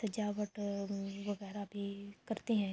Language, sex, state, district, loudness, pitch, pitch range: Urdu, female, Andhra Pradesh, Anantapur, -40 LUFS, 205 Hz, 200-210 Hz